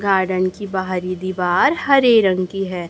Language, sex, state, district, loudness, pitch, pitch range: Hindi, male, Chhattisgarh, Raipur, -17 LUFS, 185 Hz, 185-205 Hz